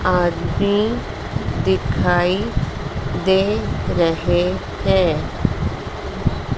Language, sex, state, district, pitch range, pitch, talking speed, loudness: Hindi, female, Madhya Pradesh, Dhar, 125-190 Hz, 175 Hz, 45 wpm, -20 LUFS